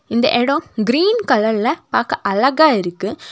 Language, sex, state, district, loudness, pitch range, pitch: Tamil, female, Tamil Nadu, Nilgiris, -16 LUFS, 210-295 Hz, 240 Hz